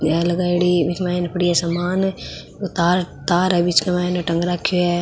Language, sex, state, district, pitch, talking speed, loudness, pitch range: Marwari, female, Rajasthan, Nagaur, 175 Hz, 165 wpm, -19 LUFS, 175-180 Hz